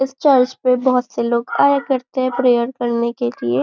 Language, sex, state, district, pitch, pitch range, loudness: Hindi, female, Maharashtra, Nagpur, 250 Hz, 235-260 Hz, -17 LUFS